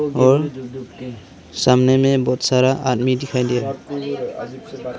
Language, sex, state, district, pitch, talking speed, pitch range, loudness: Hindi, male, Arunachal Pradesh, Longding, 130 Hz, 110 wpm, 125-135 Hz, -18 LUFS